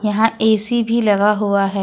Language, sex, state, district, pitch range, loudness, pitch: Hindi, female, Jharkhand, Ranchi, 205-225 Hz, -16 LUFS, 210 Hz